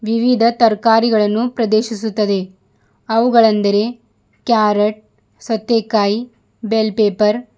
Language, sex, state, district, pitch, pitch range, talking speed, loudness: Kannada, female, Karnataka, Bidar, 220 Hz, 210-230 Hz, 70 wpm, -15 LUFS